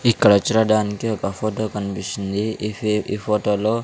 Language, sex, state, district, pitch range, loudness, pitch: Telugu, male, Andhra Pradesh, Sri Satya Sai, 105-110 Hz, -21 LUFS, 105 Hz